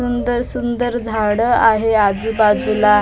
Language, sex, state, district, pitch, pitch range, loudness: Marathi, female, Maharashtra, Mumbai Suburban, 225 Hz, 210-240 Hz, -16 LUFS